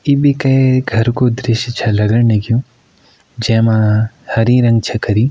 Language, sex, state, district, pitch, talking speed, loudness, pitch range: Kumaoni, male, Uttarakhand, Uttarkashi, 115 Hz, 170 wpm, -14 LUFS, 115-125 Hz